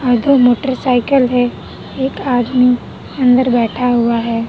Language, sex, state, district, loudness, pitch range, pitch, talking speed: Hindi, female, Maharashtra, Mumbai Suburban, -14 LUFS, 240-260 Hz, 250 Hz, 105 wpm